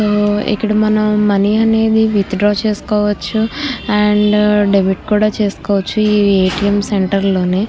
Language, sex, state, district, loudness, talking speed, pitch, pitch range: Telugu, female, Andhra Pradesh, Krishna, -14 LUFS, 115 wpm, 210 Hz, 200-215 Hz